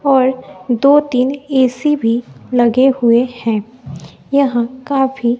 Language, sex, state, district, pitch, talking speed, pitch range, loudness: Hindi, female, Bihar, West Champaran, 255 Hz, 110 wpm, 240-270 Hz, -15 LUFS